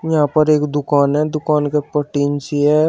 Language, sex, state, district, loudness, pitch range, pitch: Hindi, male, Uttar Pradesh, Shamli, -17 LUFS, 145-155 Hz, 150 Hz